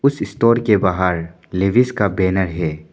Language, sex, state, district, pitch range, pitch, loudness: Hindi, male, Arunachal Pradesh, Papum Pare, 90-115 Hz, 95 Hz, -18 LUFS